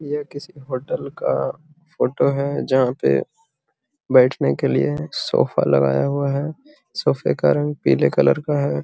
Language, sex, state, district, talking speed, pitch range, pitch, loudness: Magahi, male, Bihar, Gaya, 150 wpm, 125-155 Hz, 140 Hz, -20 LUFS